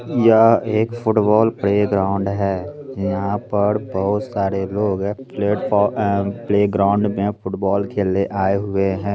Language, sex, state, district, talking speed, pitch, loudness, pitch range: Hindi, male, Bihar, Begusarai, 125 wpm, 100 Hz, -19 LUFS, 100-105 Hz